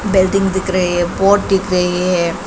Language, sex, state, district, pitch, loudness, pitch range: Hindi, female, Arunachal Pradesh, Papum Pare, 190 Hz, -15 LUFS, 180-195 Hz